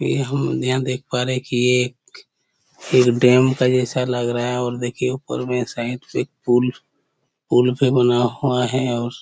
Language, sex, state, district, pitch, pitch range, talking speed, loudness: Hindi, male, Chhattisgarh, Korba, 125 Hz, 125-130 Hz, 195 wpm, -19 LUFS